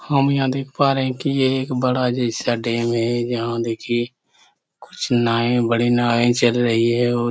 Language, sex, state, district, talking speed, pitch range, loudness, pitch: Hindi, male, Chhattisgarh, Korba, 195 wpm, 120-130 Hz, -19 LUFS, 120 Hz